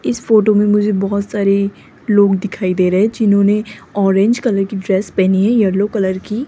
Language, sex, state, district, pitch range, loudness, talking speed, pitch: Hindi, female, Rajasthan, Jaipur, 195-210 Hz, -15 LUFS, 205 wpm, 200 Hz